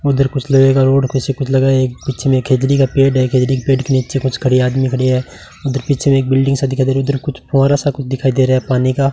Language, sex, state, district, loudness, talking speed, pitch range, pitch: Hindi, male, Rajasthan, Bikaner, -14 LUFS, 280 wpm, 130-135 Hz, 135 Hz